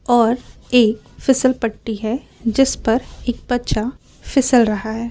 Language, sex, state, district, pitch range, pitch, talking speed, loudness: Hindi, female, Chhattisgarh, Raipur, 225-255 Hz, 235 Hz, 140 wpm, -18 LUFS